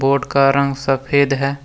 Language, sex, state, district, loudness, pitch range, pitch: Hindi, male, Jharkhand, Deoghar, -16 LUFS, 135-140 Hz, 140 Hz